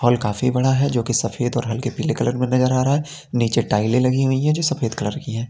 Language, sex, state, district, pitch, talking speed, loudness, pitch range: Hindi, male, Uttar Pradesh, Lalitpur, 125 Hz, 285 wpm, -20 LUFS, 120-135 Hz